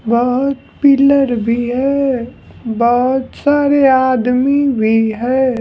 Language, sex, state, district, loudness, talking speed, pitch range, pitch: Hindi, male, Bihar, Patna, -14 LUFS, 95 wpm, 240-275 Hz, 260 Hz